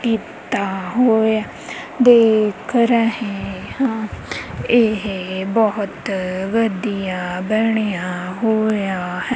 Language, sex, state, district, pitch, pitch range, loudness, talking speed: Punjabi, female, Punjab, Kapurthala, 215 Hz, 190-225 Hz, -19 LUFS, 65 wpm